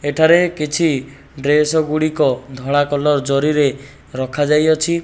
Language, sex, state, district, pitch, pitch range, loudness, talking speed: Odia, male, Odisha, Nuapada, 145 Hz, 140-155 Hz, -16 LUFS, 95 wpm